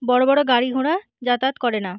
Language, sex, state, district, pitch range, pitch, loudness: Bengali, female, West Bengal, Jhargram, 245-275 Hz, 250 Hz, -19 LUFS